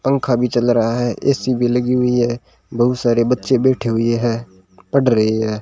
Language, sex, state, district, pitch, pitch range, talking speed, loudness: Hindi, male, Rajasthan, Bikaner, 120 Hz, 115-125 Hz, 200 wpm, -17 LUFS